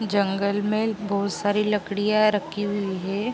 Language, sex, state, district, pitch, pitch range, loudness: Hindi, female, Uttar Pradesh, Jalaun, 205 Hz, 200-210 Hz, -24 LUFS